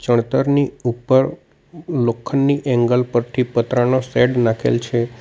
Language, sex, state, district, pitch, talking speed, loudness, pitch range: Gujarati, male, Gujarat, Navsari, 125 Hz, 105 wpm, -18 LUFS, 120-135 Hz